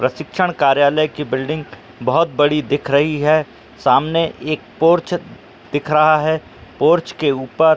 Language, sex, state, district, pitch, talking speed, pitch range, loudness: Hindi, male, Uttar Pradesh, Muzaffarnagar, 150 Hz, 145 wpm, 140-160 Hz, -17 LUFS